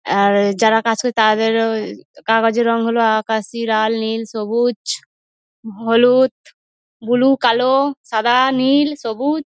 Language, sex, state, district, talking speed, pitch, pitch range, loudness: Bengali, female, West Bengal, North 24 Parganas, 115 wpm, 230 Hz, 220-250 Hz, -16 LUFS